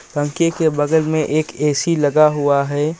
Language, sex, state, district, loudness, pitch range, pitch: Hindi, male, Jharkhand, Ranchi, -17 LUFS, 145-160 Hz, 150 Hz